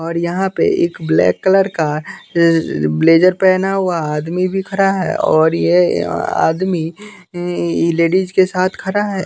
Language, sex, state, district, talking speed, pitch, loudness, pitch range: Hindi, male, Bihar, West Champaran, 145 wpm, 175 Hz, -15 LUFS, 165-190 Hz